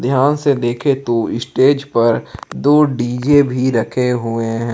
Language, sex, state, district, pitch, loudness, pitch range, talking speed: Hindi, male, Jharkhand, Palamu, 125 Hz, -15 LUFS, 115-140 Hz, 150 wpm